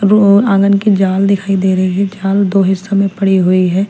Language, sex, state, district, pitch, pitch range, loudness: Hindi, female, Bihar, West Champaran, 195 Hz, 190-200 Hz, -12 LUFS